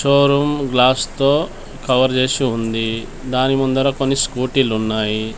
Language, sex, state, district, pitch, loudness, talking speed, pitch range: Telugu, male, Telangana, Komaram Bheem, 130 Hz, -17 LUFS, 135 wpm, 120-140 Hz